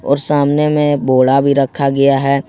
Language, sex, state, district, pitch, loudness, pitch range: Hindi, male, Jharkhand, Ranchi, 140 Hz, -13 LUFS, 135-145 Hz